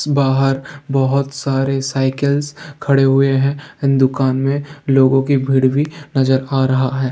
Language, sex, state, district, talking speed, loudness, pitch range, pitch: Hindi, male, Bihar, Jamui, 150 wpm, -16 LUFS, 135-140 Hz, 135 Hz